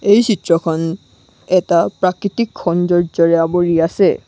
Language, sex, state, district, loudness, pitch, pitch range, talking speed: Assamese, female, Assam, Sonitpur, -15 LUFS, 175 Hz, 165-190 Hz, 100 wpm